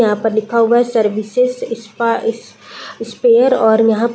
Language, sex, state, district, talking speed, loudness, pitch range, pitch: Hindi, female, Uttar Pradesh, Deoria, 175 wpm, -14 LUFS, 220-240 Hz, 230 Hz